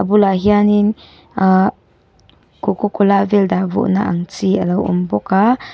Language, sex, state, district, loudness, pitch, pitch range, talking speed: Mizo, female, Mizoram, Aizawl, -15 LUFS, 195 Hz, 185-210 Hz, 155 wpm